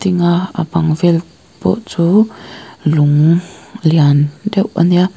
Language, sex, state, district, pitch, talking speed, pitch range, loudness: Mizo, female, Mizoram, Aizawl, 175 Hz, 115 wpm, 160-185 Hz, -14 LUFS